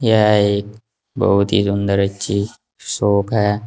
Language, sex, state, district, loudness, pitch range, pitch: Hindi, male, Uttar Pradesh, Saharanpur, -17 LUFS, 100-105 Hz, 100 Hz